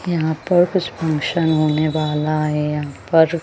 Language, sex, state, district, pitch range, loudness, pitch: Hindi, female, Madhya Pradesh, Bhopal, 150-170 Hz, -19 LUFS, 160 Hz